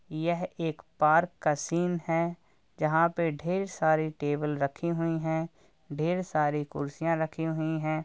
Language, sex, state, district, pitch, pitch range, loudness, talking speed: Hindi, male, Uttar Pradesh, Jalaun, 160 Hz, 155-170 Hz, -29 LUFS, 155 wpm